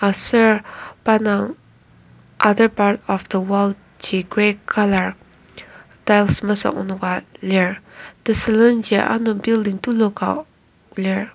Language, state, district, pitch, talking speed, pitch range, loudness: Ao, Nagaland, Kohima, 205 Hz, 105 wpm, 190-220 Hz, -18 LUFS